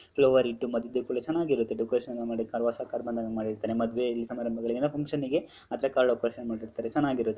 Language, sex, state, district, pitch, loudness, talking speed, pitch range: Kannada, male, Karnataka, Dharwad, 120 Hz, -30 LUFS, 220 wpm, 115-130 Hz